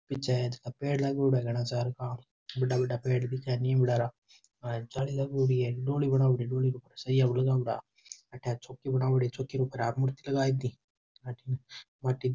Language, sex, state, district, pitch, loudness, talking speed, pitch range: Rajasthani, male, Rajasthan, Churu, 130 Hz, -31 LUFS, 85 wpm, 125-130 Hz